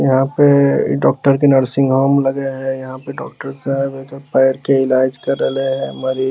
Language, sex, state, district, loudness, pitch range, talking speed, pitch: Magahi, male, Bihar, Lakhisarai, -15 LUFS, 130-140 Hz, 210 wpm, 135 Hz